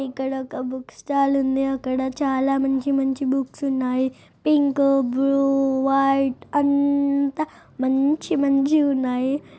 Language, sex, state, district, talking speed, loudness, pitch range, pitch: Telugu, female, Andhra Pradesh, Chittoor, 105 wpm, -21 LUFS, 265-280 Hz, 275 Hz